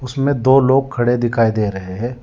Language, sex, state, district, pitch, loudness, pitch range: Hindi, male, Telangana, Hyderabad, 120 Hz, -16 LUFS, 115-135 Hz